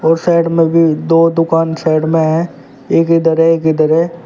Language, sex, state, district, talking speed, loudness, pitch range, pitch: Hindi, male, Uttar Pradesh, Shamli, 210 wpm, -12 LUFS, 160-165 Hz, 165 Hz